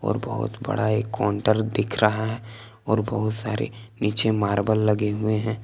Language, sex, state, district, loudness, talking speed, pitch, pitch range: Hindi, male, Jharkhand, Palamu, -23 LUFS, 170 wpm, 110 Hz, 105-110 Hz